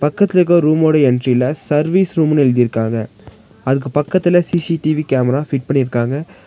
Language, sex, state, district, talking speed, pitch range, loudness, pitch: Tamil, female, Tamil Nadu, Nilgiris, 130 wpm, 125-165 Hz, -15 LUFS, 145 Hz